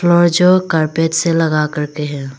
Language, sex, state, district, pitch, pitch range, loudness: Hindi, female, Arunachal Pradesh, Longding, 160 Hz, 150-175 Hz, -14 LUFS